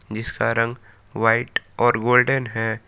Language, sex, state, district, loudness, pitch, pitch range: Hindi, male, Jharkhand, Palamu, -21 LUFS, 115 Hz, 110-120 Hz